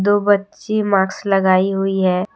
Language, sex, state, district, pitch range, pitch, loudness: Hindi, female, Jharkhand, Deoghar, 190-205 Hz, 195 Hz, -17 LUFS